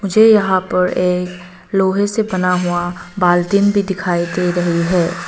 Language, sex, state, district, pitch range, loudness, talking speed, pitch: Hindi, female, Arunachal Pradesh, Longding, 175-195 Hz, -16 LUFS, 160 wpm, 180 Hz